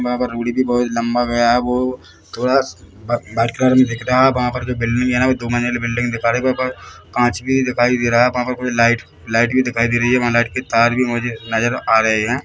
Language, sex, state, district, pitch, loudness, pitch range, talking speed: Hindi, male, Chhattisgarh, Bilaspur, 120 Hz, -17 LUFS, 115-125 Hz, 280 wpm